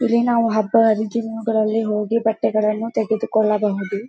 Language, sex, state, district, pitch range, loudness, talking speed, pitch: Kannada, female, Karnataka, Dharwad, 215-230 Hz, -19 LUFS, 105 wpm, 220 Hz